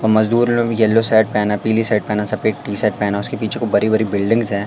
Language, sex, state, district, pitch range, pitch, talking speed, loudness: Hindi, male, Madhya Pradesh, Katni, 105-115 Hz, 110 Hz, 270 wpm, -16 LUFS